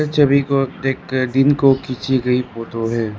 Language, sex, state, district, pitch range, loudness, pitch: Hindi, male, Arunachal Pradesh, Lower Dibang Valley, 125-135 Hz, -17 LUFS, 130 Hz